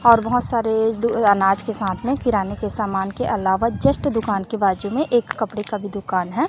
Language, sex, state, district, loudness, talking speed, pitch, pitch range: Hindi, female, Chhattisgarh, Raipur, -20 LUFS, 230 wpm, 215 Hz, 200-230 Hz